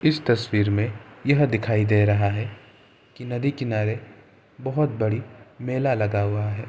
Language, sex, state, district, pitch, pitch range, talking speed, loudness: Hindi, male, Uttar Pradesh, Gorakhpur, 110 Hz, 105-125 Hz, 150 wpm, -23 LUFS